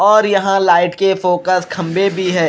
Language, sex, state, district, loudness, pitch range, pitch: Hindi, male, Punjab, Kapurthala, -14 LUFS, 180-195 Hz, 185 Hz